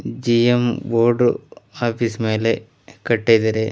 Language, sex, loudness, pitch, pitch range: Kannada, male, -18 LUFS, 115 Hz, 115-120 Hz